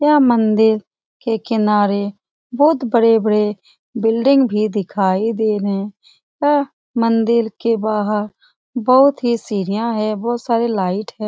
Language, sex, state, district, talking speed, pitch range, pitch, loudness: Hindi, female, Bihar, Lakhisarai, 140 wpm, 210-240 Hz, 225 Hz, -17 LUFS